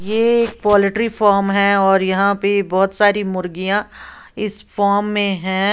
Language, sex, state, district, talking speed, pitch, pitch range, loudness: Hindi, female, Uttar Pradesh, Lalitpur, 155 wpm, 200 Hz, 195-210 Hz, -16 LUFS